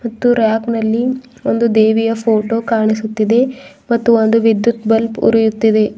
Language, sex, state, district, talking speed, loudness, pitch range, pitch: Kannada, female, Karnataka, Bidar, 120 wpm, -14 LUFS, 220-235 Hz, 225 Hz